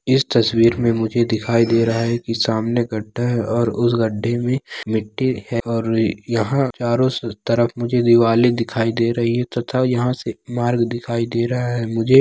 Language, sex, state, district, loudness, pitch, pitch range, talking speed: Hindi, male, Andhra Pradesh, Chittoor, -19 LUFS, 115 Hz, 115-120 Hz, 155 wpm